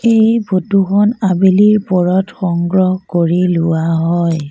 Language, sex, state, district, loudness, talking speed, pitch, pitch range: Assamese, female, Assam, Sonitpur, -13 LUFS, 120 wpm, 185 Hz, 170-200 Hz